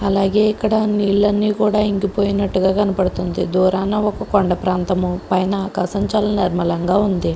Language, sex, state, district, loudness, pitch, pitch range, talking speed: Telugu, female, Andhra Pradesh, Krishna, -18 LUFS, 200 Hz, 185-205 Hz, 130 wpm